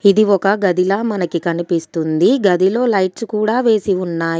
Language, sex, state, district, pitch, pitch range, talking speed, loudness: Telugu, female, Telangana, Komaram Bheem, 190 Hz, 170-210 Hz, 135 wpm, -16 LUFS